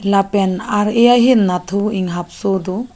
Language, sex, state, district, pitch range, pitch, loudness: Karbi, female, Assam, Karbi Anglong, 185-210 Hz, 200 Hz, -15 LUFS